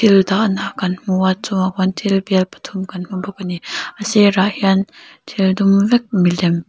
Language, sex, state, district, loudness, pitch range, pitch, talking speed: Mizo, female, Mizoram, Aizawl, -17 LUFS, 185-200 Hz, 190 Hz, 195 wpm